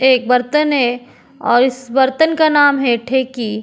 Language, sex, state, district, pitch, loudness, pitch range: Hindi, female, Uttarakhand, Tehri Garhwal, 260 Hz, -14 LUFS, 245-285 Hz